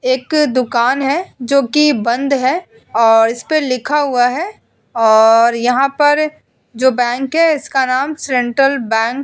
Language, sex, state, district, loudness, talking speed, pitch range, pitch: Hindi, female, Uttar Pradesh, Etah, -14 LUFS, 155 wpm, 240-295 Hz, 260 Hz